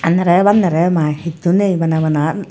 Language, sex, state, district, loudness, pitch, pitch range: Chakma, female, Tripura, Dhalai, -14 LUFS, 170 Hz, 160-185 Hz